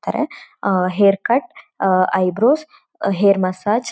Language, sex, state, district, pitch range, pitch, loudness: Kannada, female, Karnataka, Shimoga, 185-240 Hz, 200 Hz, -18 LUFS